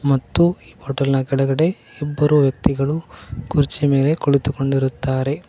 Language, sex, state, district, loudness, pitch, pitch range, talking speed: Kannada, male, Karnataka, Koppal, -19 LUFS, 140 Hz, 135-145 Hz, 100 wpm